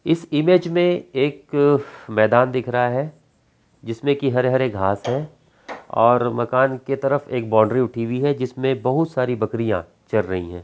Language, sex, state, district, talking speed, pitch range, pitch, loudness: Hindi, male, Bihar, Gaya, 160 wpm, 115-140 Hz, 130 Hz, -20 LUFS